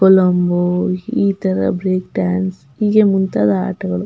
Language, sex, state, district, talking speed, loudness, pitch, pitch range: Kannada, female, Karnataka, Chamarajanagar, 135 wpm, -16 LUFS, 185 Hz, 175-190 Hz